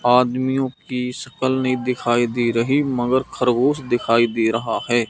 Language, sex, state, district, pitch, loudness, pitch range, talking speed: Hindi, male, Madhya Pradesh, Katni, 125 Hz, -20 LUFS, 120-130 Hz, 155 wpm